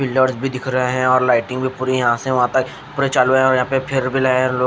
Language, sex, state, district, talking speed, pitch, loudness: Hindi, female, Odisha, Khordha, 255 wpm, 130 Hz, -17 LUFS